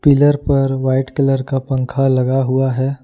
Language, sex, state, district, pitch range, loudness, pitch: Hindi, male, Jharkhand, Ranchi, 130-140 Hz, -16 LUFS, 135 Hz